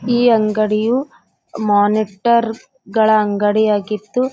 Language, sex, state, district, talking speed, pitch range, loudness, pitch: Kannada, female, Karnataka, Gulbarga, 85 wpm, 210-235 Hz, -16 LUFS, 215 Hz